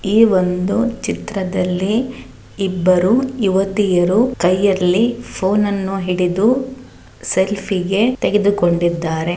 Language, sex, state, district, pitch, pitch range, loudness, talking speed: Kannada, female, Karnataka, Raichur, 195 Hz, 180-220 Hz, -17 LUFS, 65 wpm